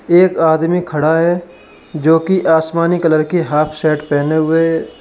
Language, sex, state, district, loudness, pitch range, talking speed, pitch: Hindi, male, Uttar Pradesh, Lalitpur, -14 LUFS, 155-175 Hz, 170 wpm, 160 Hz